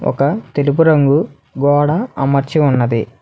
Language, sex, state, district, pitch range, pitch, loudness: Telugu, male, Telangana, Hyderabad, 135-155 Hz, 145 Hz, -14 LUFS